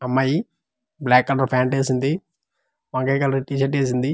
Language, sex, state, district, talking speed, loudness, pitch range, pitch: Telugu, male, Andhra Pradesh, Manyam, 145 wpm, -21 LUFS, 130-145 Hz, 135 Hz